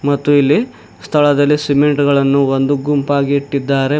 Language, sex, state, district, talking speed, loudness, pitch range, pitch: Kannada, male, Karnataka, Bidar, 120 wpm, -14 LUFS, 140-145 Hz, 145 Hz